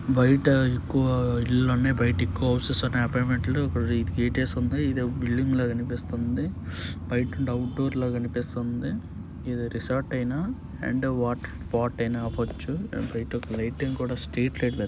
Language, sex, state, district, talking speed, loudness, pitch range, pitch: Telugu, male, Andhra Pradesh, Srikakulam, 155 wpm, -27 LUFS, 120-130 Hz, 125 Hz